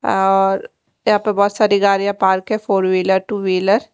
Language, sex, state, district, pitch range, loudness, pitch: Hindi, female, Chandigarh, Chandigarh, 190-210 Hz, -16 LUFS, 200 Hz